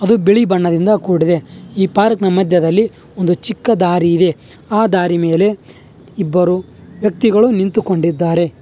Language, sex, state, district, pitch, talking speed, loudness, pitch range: Kannada, male, Karnataka, Bangalore, 185 Hz, 120 wpm, -14 LUFS, 170-210 Hz